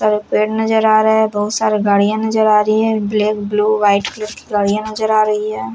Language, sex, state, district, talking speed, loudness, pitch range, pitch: Hindi, female, Bihar, Kaimur, 240 wpm, -15 LUFS, 210-220 Hz, 215 Hz